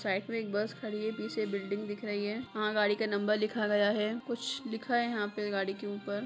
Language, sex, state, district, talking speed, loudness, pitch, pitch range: Hindi, female, Bihar, Begusarai, 250 wpm, -33 LUFS, 210 Hz, 205-225 Hz